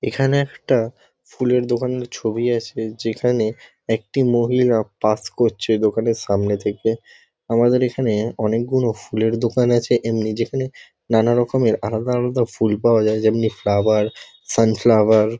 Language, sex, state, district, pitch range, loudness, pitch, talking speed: Bengali, male, West Bengal, Kolkata, 110-120 Hz, -19 LUFS, 115 Hz, 125 wpm